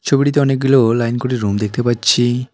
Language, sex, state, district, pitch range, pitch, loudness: Bengali, male, West Bengal, Alipurduar, 120-135 Hz, 120 Hz, -15 LUFS